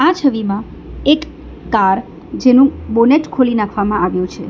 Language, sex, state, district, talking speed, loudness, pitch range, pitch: Gujarati, female, Gujarat, Valsad, 135 wpm, -15 LUFS, 205-280 Hz, 240 Hz